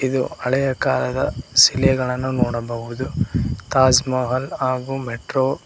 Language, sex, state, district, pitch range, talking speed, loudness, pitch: Kannada, male, Karnataka, Koppal, 125-130 Hz, 105 wpm, -20 LUFS, 130 Hz